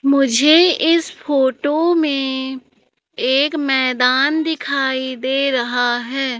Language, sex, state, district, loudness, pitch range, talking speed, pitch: Hindi, female, Madhya Pradesh, Katni, -16 LUFS, 260-295 Hz, 95 wpm, 270 Hz